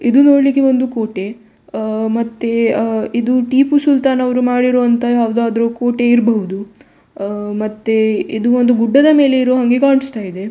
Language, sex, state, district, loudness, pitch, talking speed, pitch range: Kannada, female, Karnataka, Dakshina Kannada, -14 LUFS, 240 Hz, 115 wpm, 220-255 Hz